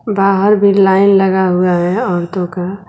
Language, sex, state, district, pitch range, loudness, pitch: Hindi, female, Uttar Pradesh, Lucknow, 180-195 Hz, -12 LUFS, 190 Hz